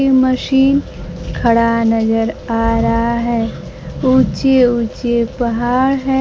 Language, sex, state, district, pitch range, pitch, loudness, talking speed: Hindi, female, Bihar, Kaimur, 230-260 Hz, 240 Hz, -15 LUFS, 95 wpm